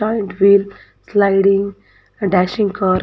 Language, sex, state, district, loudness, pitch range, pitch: Kannada, female, Karnataka, Dakshina Kannada, -16 LUFS, 195-205 Hz, 200 Hz